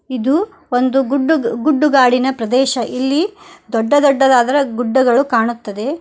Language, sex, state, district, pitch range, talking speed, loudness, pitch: Kannada, female, Karnataka, Koppal, 245-285 Hz, 110 wpm, -15 LUFS, 265 Hz